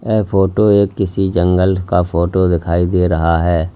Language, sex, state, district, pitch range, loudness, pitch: Hindi, male, Uttar Pradesh, Lalitpur, 85-95 Hz, -14 LUFS, 90 Hz